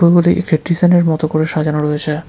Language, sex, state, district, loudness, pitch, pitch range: Bengali, male, West Bengal, Cooch Behar, -14 LUFS, 160 Hz, 155-175 Hz